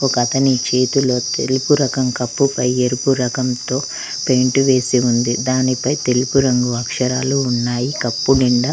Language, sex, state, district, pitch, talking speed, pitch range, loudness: Telugu, female, Telangana, Mahabubabad, 125 Hz, 125 wpm, 125-135 Hz, -17 LUFS